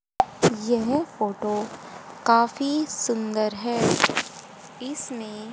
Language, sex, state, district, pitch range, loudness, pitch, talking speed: Hindi, female, Haryana, Rohtak, 215-260 Hz, -24 LUFS, 230 Hz, 65 wpm